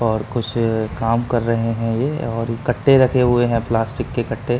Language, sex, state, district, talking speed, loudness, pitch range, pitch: Hindi, male, Uttar Pradesh, Muzaffarnagar, 195 wpm, -19 LUFS, 115-120 Hz, 115 Hz